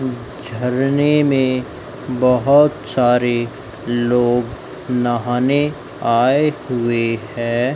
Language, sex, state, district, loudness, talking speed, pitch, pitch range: Hindi, male, Madhya Pradesh, Dhar, -17 LUFS, 70 wpm, 125 Hz, 120-135 Hz